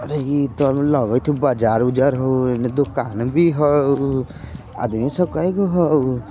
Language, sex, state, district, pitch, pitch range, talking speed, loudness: Bajjika, male, Bihar, Vaishali, 140 Hz, 125-150 Hz, 150 wpm, -18 LUFS